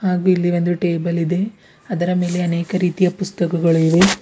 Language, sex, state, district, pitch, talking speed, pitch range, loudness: Kannada, female, Karnataka, Bidar, 180 Hz, 155 wpm, 170-185 Hz, -18 LUFS